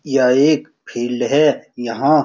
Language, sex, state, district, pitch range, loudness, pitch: Hindi, male, Bihar, Saran, 125-150 Hz, -17 LUFS, 135 Hz